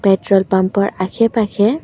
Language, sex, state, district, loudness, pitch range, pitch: Assamese, female, Assam, Kamrup Metropolitan, -15 LUFS, 190-220 Hz, 200 Hz